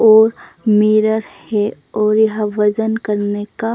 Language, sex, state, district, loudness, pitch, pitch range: Hindi, female, Chandigarh, Chandigarh, -16 LUFS, 215 Hz, 210-220 Hz